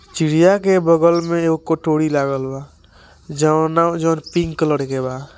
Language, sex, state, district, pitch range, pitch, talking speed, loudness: Hindi, male, Bihar, East Champaran, 140-170 Hz, 160 Hz, 165 wpm, -17 LUFS